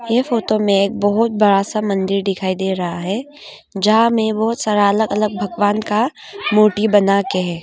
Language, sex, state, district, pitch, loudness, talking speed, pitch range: Hindi, female, Arunachal Pradesh, Longding, 210 Hz, -17 LUFS, 190 wpm, 195-220 Hz